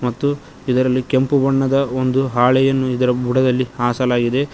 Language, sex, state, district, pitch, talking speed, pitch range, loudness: Kannada, male, Karnataka, Koppal, 130 Hz, 120 wpm, 125-135 Hz, -17 LUFS